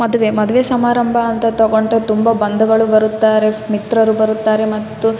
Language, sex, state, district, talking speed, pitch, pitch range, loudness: Kannada, female, Karnataka, Raichur, 125 wpm, 220 Hz, 215-230 Hz, -14 LUFS